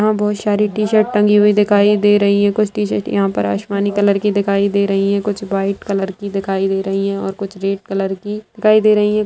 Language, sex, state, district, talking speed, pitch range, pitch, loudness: Hindi, male, Bihar, Araria, 245 wpm, 195-210 Hz, 200 Hz, -16 LUFS